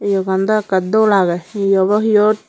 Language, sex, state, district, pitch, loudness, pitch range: Chakma, female, Tripura, Unakoti, 200 Hz, -15 LUFS, 190-215 Hz